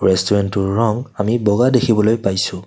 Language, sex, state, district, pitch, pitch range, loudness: Assamese, male, Assam, Kamrup Metropolitan, 105 Hz, 95-115 Hz, -16 LUFS